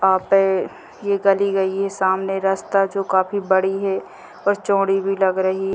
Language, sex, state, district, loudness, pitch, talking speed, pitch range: Hindi, female, Bihar, Gopalganj, -19 LUFS, 195 Hz, 190 wpm, 190-195 Hz